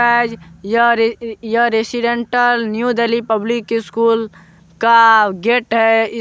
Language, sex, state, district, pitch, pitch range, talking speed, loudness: Hindi, male, Bihar, Supaul, 230 Hz, 220-235 Hz, 115 wpm, -15 LUFS